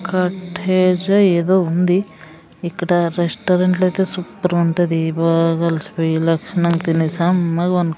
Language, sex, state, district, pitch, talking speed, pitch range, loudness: Telugu, female, Andhra Pradesh, Sri Satya Sai, 175 Hz, 105 wpm, 165-185 Hz, -17 LUFS